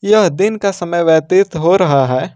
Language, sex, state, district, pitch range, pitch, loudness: Hindi, male, Jharkhand, Ranchi, 160-200 Hz, 180 Hz, -13 LUFS